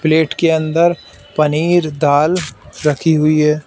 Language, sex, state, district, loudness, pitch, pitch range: Hindi, male, Uttar Pradesh, Lalitpur, -15 LUFS, 155 Hz, 150-165 Hz